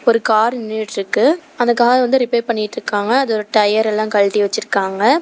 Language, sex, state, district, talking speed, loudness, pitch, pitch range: Tamil, female, Tamil Nadu, Namakkal, 150 wpm, -16 LUFS, 220 Hz, 210-245 Hz